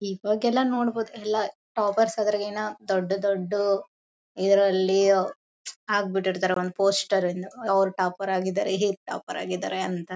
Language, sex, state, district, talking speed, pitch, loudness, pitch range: Kannada, female, Karnataka, Bellary, 120 wpm, 195 Hz, -25 LUFS, 190-210 Hz